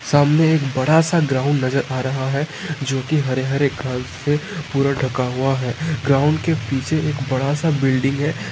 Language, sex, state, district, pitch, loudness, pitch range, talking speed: Hindi, male, Uttar Pradesh, Hamirpur, 140 Hz, -19 LUFS, 130-155 Hz, 170 wpm